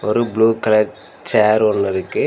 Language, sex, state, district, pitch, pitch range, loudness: Tamil, male, Tamil Nadu, Nilgiris, 110 Hz, 105-110 Hz, -16 LUFS